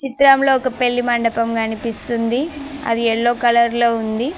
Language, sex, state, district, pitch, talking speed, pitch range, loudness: Telugu, female, Telangana, Mahabubabad, 235 Hz, 135 wpm, 230-265 Hz, -17 LUFS